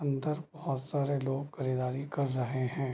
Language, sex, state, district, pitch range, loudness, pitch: Hindi, male, Bihar, Darbhanga, 130-145 Hz, -33 LUFS, 135 Hz